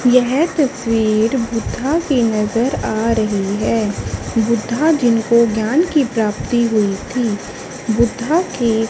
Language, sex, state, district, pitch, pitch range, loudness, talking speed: Hindi, female, Haryana, Charkhi Dadri, 235 Hz, 220-255 Hz, -17 LUFS, 120 wpm